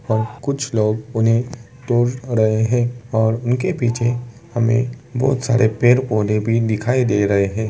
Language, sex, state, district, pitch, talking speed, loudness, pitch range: Hindi, male, Uttar Pradesh, Varanasi, 120 Hz, 165 wpm, -18 LUFS, 110-125 Hz